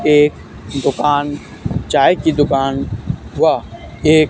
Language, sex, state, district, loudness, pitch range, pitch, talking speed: Hindi, male, Haryana, Charkhi Dadri, -16 LUFS, 140-150 Hz, 145 Hz, 100 wpm